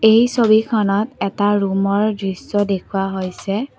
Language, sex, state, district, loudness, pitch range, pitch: Assamese, female, Assam, Kamrup Metropolitan, -18 LUFS, 195-220 Hz, 205 Hz